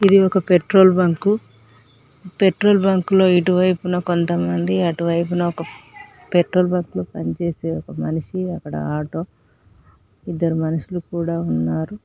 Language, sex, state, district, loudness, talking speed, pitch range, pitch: Telugu, female, Telangana, Mahabubabad, -19 LUFS, 105 wpm, 115-185 Hz, 170 Hz